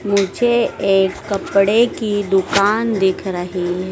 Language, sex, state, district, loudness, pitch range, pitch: Hindi, female, Madhya Pradesh, Dhar, -17 LUFS, 190-210 Hz, 195 Hz